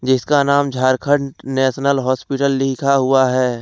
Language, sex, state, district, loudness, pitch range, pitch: Hindi, male, Jharkhand, Ranchi, -16 LUFS, 130-140 Hz, 135 Hz